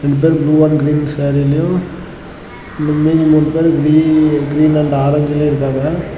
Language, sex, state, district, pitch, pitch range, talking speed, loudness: Tamil, male, Tamil Nadu, Namakkal, 150 Hz, 145-155 Hz, 145 wpm, -13 LUFS